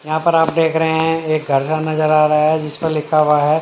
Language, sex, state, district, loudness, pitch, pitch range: Hindi, male, Haryana, Jhajjar, -16 LUFS, 155 Hz, 155-160 Hz